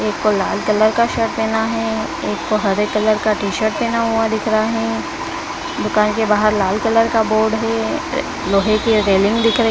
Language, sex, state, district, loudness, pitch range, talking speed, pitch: Hindi, female, Bihar, Saharsa, -17 LUFS, 200-225 Hz, 205 wpm, 215 Hz